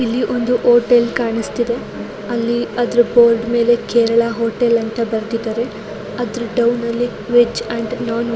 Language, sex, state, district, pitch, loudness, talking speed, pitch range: Kannada, female, Karnataka, Raichur, 235 Hz, -17 LUFS, 135 wpm, 230-240 Hz